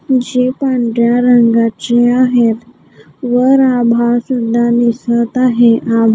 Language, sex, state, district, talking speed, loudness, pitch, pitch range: Marathi, female, Maharashtra, Gondia, 95 wpm, -12 LUFS, 240 Hz, 235-250 Hz